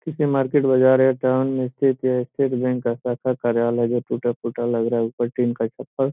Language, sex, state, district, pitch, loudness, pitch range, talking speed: Hindi, male, Bihar, Gopalganj, 125 Hz, -21 LUFS, 120-130 Hz, 215 wpm